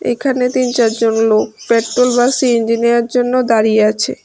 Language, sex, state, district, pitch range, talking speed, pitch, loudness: Bengali, female, Tripura, West Tripura, 225-250 Hz, 155 wpm, 235 Hz, -13 LUFS